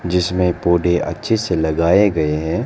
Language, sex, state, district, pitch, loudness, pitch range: Hindi, male, Arunachal Pradesh, Lower Dibang Valley, 85 Hz, -17 LUFS, 80-90 Hz